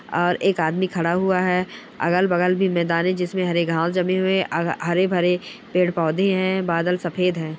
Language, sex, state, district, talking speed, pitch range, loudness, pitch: Hindi, male, Bihar, Bhagalpur, 175 wpm, 170-185 Hz, -21 LUFS, 180 Hz